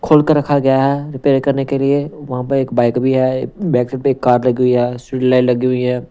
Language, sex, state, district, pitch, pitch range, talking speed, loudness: Hindi, male, Punjab, Pathankot, 130 Hz, 125-140 Hz, 275 wpm, -15 LUFS